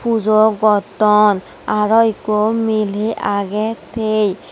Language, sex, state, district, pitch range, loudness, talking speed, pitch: Chakma, female, Tripura, West Tripura, 210-220 Hz, -16 LUFS, 95 wpm, 215 Hz